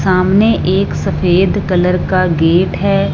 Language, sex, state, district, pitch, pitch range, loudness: Hindi, female, Punjab, Fazilka, 185 Hz, 180-195 Hz, -13 LUFS